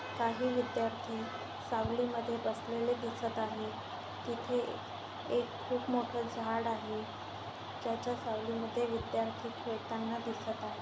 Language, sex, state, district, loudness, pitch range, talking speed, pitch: Marathi, female, Maharashtra, Nagpur, -37 LUFS, 220-240 Hz, 110 wpm, 230 Hz